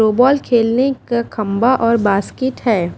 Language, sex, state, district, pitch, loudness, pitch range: Hindi, female, Haryana, Jhajjar, 235 Hz, -16 LUFS, 215-255 Hz